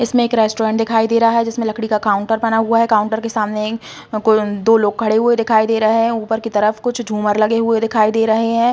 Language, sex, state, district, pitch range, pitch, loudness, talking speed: Hindi, female, Uttar Pradesh, Hamirpur, 215-230 Hz, 225 Hz, -16 LUFS, 260 wpm